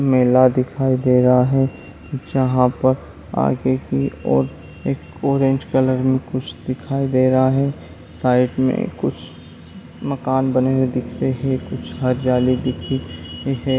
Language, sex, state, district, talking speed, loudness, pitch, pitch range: Hindi, male, Chhattisgarh, Raigarh, 140 wpm, -19 LUFS, 130 Hz, 125-130 Hz